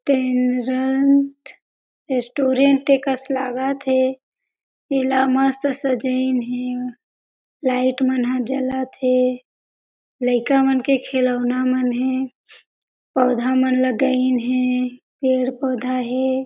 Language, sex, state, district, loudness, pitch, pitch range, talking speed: Chhattisgarhi, female, Chhattisgarh, Jashpur, -20 LUFS, 260 Hz, 255-265 Hz, 100 wpm